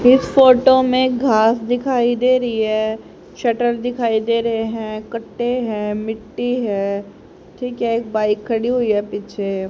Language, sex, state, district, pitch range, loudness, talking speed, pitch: Hindi, female, Haryana, Rohtak, 215-245 Hz, -18 LUFS, 150 wpm, 230 Hz